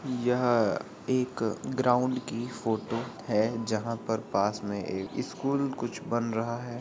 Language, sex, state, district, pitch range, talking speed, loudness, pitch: Hindi, male, Uttar Pradesh, Muzaffarnagar, 110-125 Hz, 140 wpm, -30 LUFS, 115 Hz